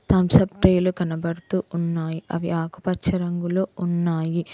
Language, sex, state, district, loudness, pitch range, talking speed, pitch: Telugu, female, Telangana, Mahabubabad, -23 LUFS, 170-185 Hz, 120 wpm, 175 Hz